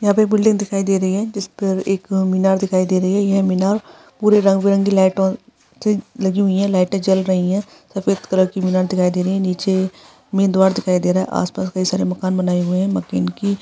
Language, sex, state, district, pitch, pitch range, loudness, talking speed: Hindi, female, Chhattisgarh, Sarguja, 190 Hz, 185-200 Hz, -18 LUFS, 240 wpm